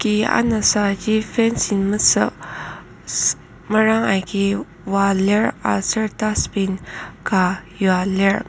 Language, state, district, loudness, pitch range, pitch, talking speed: Ao, Nagaland, Kohima, -19 LUFS, 190-215 Hz, 200 Hz, 90 wpm